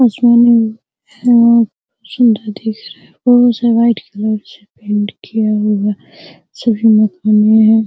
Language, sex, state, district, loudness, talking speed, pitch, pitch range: Hindi, female, Bihar, Araria, -13 LUFS, 105 wpm, 220 Hz, 210-235 Hz